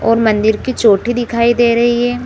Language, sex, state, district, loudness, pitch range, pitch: Hindi, female, Bihar, Supaul, -13 LUFS, 225-240 Hz, 235 Hz